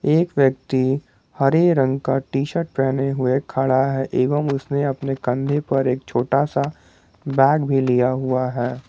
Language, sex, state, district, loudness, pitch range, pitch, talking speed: Hindi, male, Jharkhand, Garhwa, -20 LUFS, 130-140 Hz, 135 Hz, 160 wpm